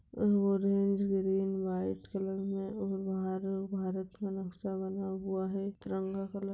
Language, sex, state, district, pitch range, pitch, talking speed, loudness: Hindi, female, Bihar, Begusarai, 190-195 Hz, 195 Hz, 145 wpm, -34 LUFS